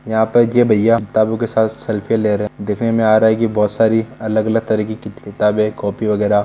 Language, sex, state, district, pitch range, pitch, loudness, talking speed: Hindi, male, Rajasthan, Nagaur, 105-115 Hz, 110 Hz, -16 LUFS, 225 wpm